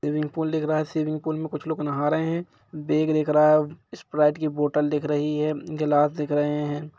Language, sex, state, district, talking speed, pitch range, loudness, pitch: Hindi, female, Jharkhand, Jamtara, 230 wpm, 150-155 Hz, -24 LUFS, 150 Hz